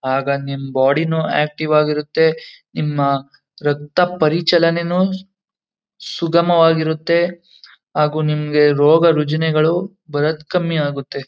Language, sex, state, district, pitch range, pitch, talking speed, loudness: Kannada, male, Karnataka, Mysore, 150-170 Hz, 160 Hz, 95 wpm, -17 LUFS